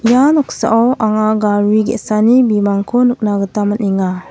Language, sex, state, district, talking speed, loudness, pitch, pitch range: Garo, female, Meghalaya, West Garo Hills, 125 wpm, -13 LUFS, 215 Hz, 205-240 Hz